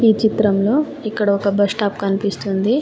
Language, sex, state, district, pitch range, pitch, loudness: Telugu, female, Telangana, Mahabubabad, 200-225 Hz, 205 Hz, -18 LUFS